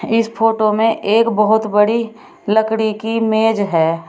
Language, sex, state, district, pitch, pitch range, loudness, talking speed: Hindi, female, Uttar Pradesh, Shamli, 220 Hz, 210-225 Hz, -15 LUFS, 145 wpm